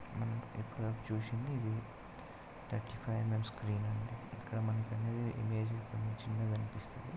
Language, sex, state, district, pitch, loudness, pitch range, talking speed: Telugu, male, Telangana, Nalgonda, 110 Hz, -40 LUFS, 110-115 Hz, 85 wpm